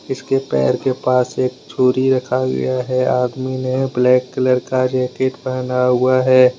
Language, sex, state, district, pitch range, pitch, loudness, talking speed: Hindi, male, Jharkhand, Deoghar, 125-130 Hz, 130 Hz, -17 LUFS, 165 wpm